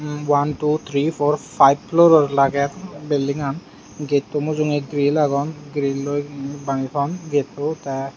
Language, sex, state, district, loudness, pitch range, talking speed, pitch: Chakma, male, Tripura, Unakoti, -20 LUFS, 140-150 Hz, 130 wpm, 145 Hz